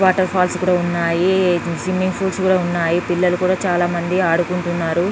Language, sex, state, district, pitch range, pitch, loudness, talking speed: Telugu, female, Telangana, Nalgonda, 175-185 Hz, 180 Hz, -18 LUFS, 150 wpm